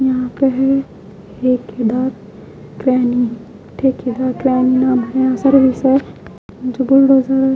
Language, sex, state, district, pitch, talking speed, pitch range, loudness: Hindi, female, Haryana, Charkhi Dadri, 255 Hz, 30 wpm, 245-265 Hz, -15 LUFS